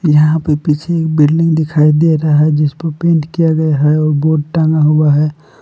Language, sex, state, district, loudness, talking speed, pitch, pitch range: Hindi, male, Jharkhand, Palamu, -12 LUFS, 205 wpm, 155 Hz, 150-160 Hz